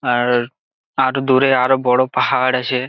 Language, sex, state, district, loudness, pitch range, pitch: Bengali, male, West Bengal, Jalpaiguri, -16 LUFS, 125-130 Hz, 130 Hz